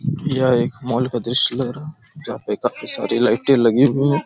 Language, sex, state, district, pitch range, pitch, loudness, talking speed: Hindi, male, Chhattisgarh, Raigarh, 120-140 Hz, 130 Hz, -18 LUFS, 240 wpm